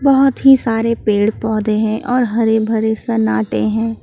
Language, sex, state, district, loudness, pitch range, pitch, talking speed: Hindi, female, Jharkhand, Palamu, -15 LUFS, 210-230 Hz, 220 Hz, 165 wpm